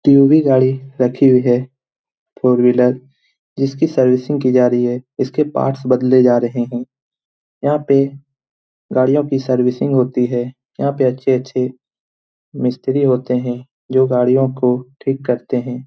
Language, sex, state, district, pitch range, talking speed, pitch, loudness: Hindi, male, Bihar, Jamui, 125-135 Hz, 150 wpm, 130 Hz, -16 LUFS